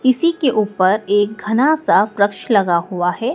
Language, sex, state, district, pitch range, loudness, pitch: Hindi, female, Madhya Pradesh, Dhar, 195-250 Hz, -16 LUFS, 210 Hz